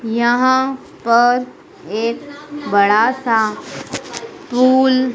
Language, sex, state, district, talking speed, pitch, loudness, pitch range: Hindi, female, Madhya Pradesh, Dhar, 70 wpm, 250 Hz, -16 LUFS, 230-265 Hz